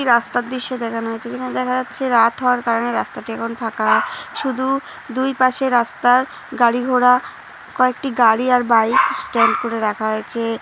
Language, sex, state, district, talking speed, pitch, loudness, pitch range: Bengali, female, West Bengal, Purulia, 170 wpm, 245 Hz, -18 LUFS, 230-255 Hz